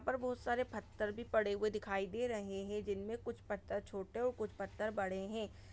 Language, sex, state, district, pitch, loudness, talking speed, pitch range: Hindi, female, Chhattisgarh, Bastar, 210 Hz, -41 LUFS, 210 wpm, 200-230 Hz